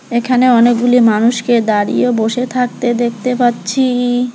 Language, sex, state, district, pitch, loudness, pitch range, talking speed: Bengali, female, West Bengal, Alipurduar, 245 Hz, -13 LUFS, 235-250 Hz, 110 wpm